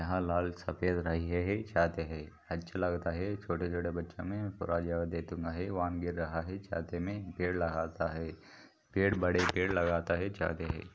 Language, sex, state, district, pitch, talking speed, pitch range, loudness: Hindi, male, Maharashtra, Sindhudurg, 85 Hz, 120 wpm, 85-90 Hz, -35 LUFS